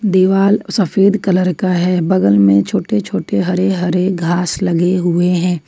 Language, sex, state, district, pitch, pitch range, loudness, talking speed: Hindi, female, Jharkhand, Ranchi, 180 Hz, 175-190 Hz, -14 LUFS, 160 wpm